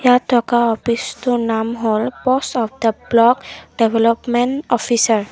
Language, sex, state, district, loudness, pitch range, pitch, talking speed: Assamese, female, Assam, Kamrup Metropolitan, -17 LUFS, 225-245 Hz, 235 Hz, 135 wpm